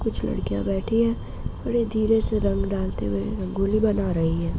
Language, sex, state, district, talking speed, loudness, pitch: Hindi, female, Bihar, East Champaran, 195 wpm, -24 LUFS, 185 Hz